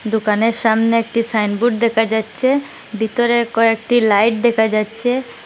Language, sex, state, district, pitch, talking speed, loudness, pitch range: Bengali, female, Assam, Hailakandi, 225 Hz, 130 wpm, -16 LUFS, 220-235 Hz